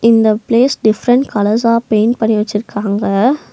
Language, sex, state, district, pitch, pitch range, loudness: Tamil, female, Tamil Nadu, Nilgiris, 220 Hz, 210-235 Hz, -13 LUFS